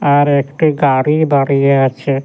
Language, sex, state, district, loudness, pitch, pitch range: Bengali, male, West Bengal, Jhargram, -13 LUFS, 140 Hz, 135-145 Hz